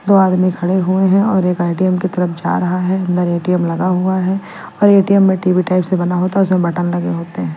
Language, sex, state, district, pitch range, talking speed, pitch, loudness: Hindi, female, Bihar, West Champaran, 180-190 Hz, 255 wpm, 185 Hz, -15 LUFS